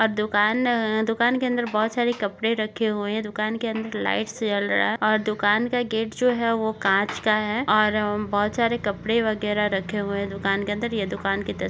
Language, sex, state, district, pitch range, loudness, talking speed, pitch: Hindi, female, Chhattisgarh, Jashpur, 205-225 Hz, -23 LUFS, 230 wpm, 215 Hz